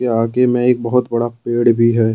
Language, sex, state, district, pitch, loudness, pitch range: Hindi, male, Jharkhand, Deoghar, 120 Hz, -15 LUFS, 115-125 Hz